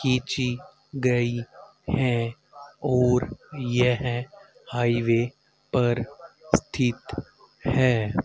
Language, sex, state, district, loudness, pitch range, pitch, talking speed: Hindi, male, Haryana, Rohtak, -25 LUFS, 120-135 Hz, 125 Hz, 65 wpm